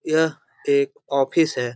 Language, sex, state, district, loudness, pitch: Hindi, male, Jharkhand, Jamtara, -22 LUFS, 160 Hz